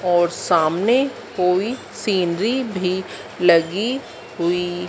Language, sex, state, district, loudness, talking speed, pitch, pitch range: Hindi, female, Madhya Pradesh, Dhar, -20 LUFS, 85 wpm, 180 Hz, 175-225 Hz